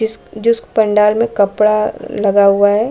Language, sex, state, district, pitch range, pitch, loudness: Hindi, female, Chhattisgarh, Bilaspur, 205-220 Hz, 210 Hz, -14 LUFS